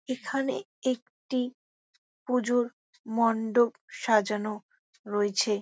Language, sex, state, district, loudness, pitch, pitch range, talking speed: Bengali, female, West Bengal, Jhargram, -29 LUFS, 235 Hz, 215-250 Hz, 75 wpm